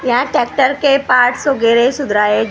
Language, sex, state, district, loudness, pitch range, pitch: Hindi, female, Maharashtra, Gondia, -13 LUFS, 230-275 Hz, 250 Hz